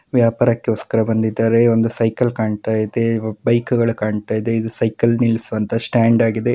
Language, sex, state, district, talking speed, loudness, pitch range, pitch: Kannada, male, Karnataka, Mysore, 130 wpm, -18 LUFS, 110-115 Hz, 115 Hz